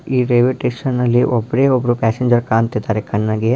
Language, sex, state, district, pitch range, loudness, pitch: Kannada, male, Karnataka, Dharwad, 110-125 Hz, -16 LUFS, 120 Hz